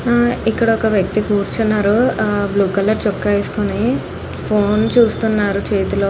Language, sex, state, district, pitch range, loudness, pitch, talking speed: Telugu, female, Andhra Pradesh, Anantapur, 200-225 Hz, -16 LUFS, 210 Hz, 120 wpm